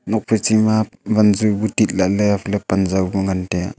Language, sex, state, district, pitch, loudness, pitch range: Wancho, male, Arunachal Pradesh, Longding, 105 Hz, -18 LUFS, 95-110 Hz